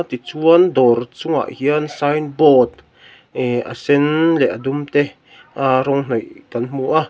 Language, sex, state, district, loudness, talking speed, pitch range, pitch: Mizo, male, Mizoram, Aizawl, -17 LUFS, 160 wpm, 125-150 Hz, 145 Hz